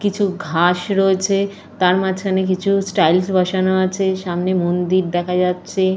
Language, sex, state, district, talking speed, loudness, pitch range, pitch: Bengali, female, Jharkhand, Jamtara, 130 wpm, -18 LUFS, 180-195 Hz, 185 Hz